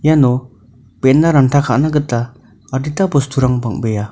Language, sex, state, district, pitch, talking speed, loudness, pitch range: Garo, male, Meghalaya, North Garo Hills, 130 Hz, 115 wpm, -15 LUFS, 120-145 Hz